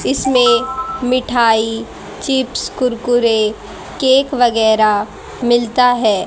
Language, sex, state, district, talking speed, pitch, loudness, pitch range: Hindi, female, Haryana, Rohtak, 75 wpm, 245 Hz, -14 LUFS, 225-260 Hz